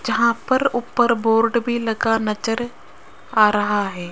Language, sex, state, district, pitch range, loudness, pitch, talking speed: Hindi, female, Rajasthan, Jaipur, 215-240 Hz, -19 LUFS, 230 Hz, 145 wpm